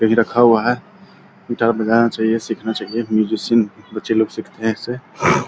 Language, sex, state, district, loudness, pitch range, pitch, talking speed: Hindi, male, Bihar, Purnia, -18 LUFS, 110-120 Hz, 115 Hz, 165 wpm